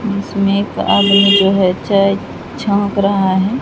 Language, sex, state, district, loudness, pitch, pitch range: Hindi, female, Bihar, Katihar, -13 LUFS, 200 Hz, 195-200 Hz